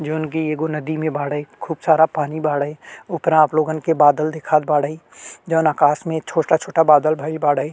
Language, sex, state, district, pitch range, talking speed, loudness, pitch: Bhojpuri, male, Uttar Pradesh, Ghazipur, 150-160 Hz, 195 wpm, -18 LUFS, 155 Hz